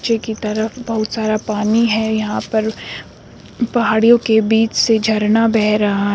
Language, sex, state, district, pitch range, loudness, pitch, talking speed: Hindi, female, Uttar Pradesh, Shamli, 215-225 Hz, -16 LUFS, 220 Hz, 155 wpm